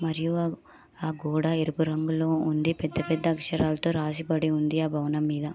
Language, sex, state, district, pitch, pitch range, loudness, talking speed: Telugu, female, Andhra Pradesh, Srikakulam, 160 Hz, 155-160 Hz, -27 LUFS, 150 wpm